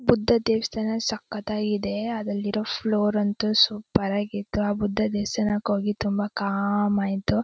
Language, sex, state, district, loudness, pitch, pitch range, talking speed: Kannada, female, Karnataka, Shimoga, -25 LUFS, 210 Hz, 205-215 Hz, 130 wpm